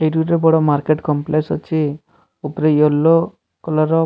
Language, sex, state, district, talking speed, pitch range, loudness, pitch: Odia, male, Odisha, Sambalpur, 150 wpm, 150-160 Hz, -16 LUFS, 155 Hz